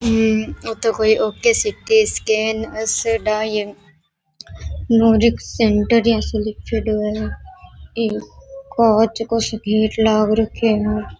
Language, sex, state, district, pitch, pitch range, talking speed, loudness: Rajasthani, female, Rajasthan, Nagaur, 220 Hz, 215-230 Hz, 95 wpm, -18 LUFS